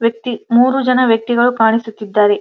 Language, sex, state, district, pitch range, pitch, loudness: Kannada, female, Karnataka, Dharwad, 220-245 Hz, 230 Hz, -14 LUFS